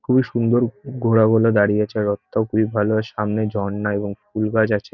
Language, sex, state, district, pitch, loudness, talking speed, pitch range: Bengali, male, West Bengal, North 24 Parganas, 110 Hz, -20 LUFS, 170 wpm, 105-115 Hz